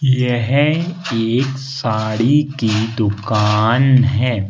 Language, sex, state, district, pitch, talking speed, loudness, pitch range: Hindi, male, Madhya Pradesh, Bhopal, 120 Hz, 80 wpm, -16 LUFS, 110-135 Hz